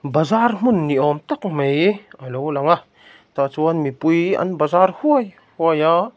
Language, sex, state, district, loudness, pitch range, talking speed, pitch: Mizo, male, Mizoram, Aizawl, -18 LUFS, 145-200 Hz, 175 wpm, 165 Hz